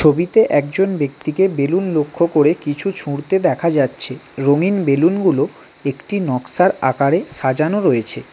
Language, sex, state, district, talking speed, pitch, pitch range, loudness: Bengali, male, West Bengal, Cooch Behar, 130 wpm, 150 Hz, 140-185 Hz, -17 LUFS